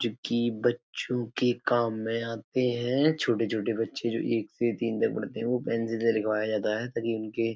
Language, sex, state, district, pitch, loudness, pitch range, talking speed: Hindi, male, Uttar Pradesh, Etah, 115 Hz, -29 LUFS, 115-120 Hz, 205 wpm